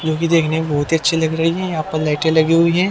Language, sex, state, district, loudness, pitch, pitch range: Hindi, male, Haryana, Jhajjar, -17 LUFS, 160 Hz, 155-165 Hz